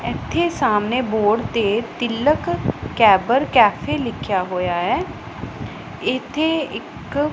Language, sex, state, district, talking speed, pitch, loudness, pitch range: Punjabi, female, Punjab, Pathankot, 105 wpm, 230 Hz, -19 LUFS, 205-285 Hz